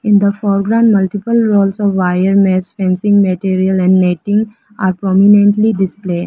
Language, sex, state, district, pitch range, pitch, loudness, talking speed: English, female, Arunachal Pradesh, Lower Dibang Valley, 185-205 Hz, 195 Hz, -12 LUFS, 145 wpm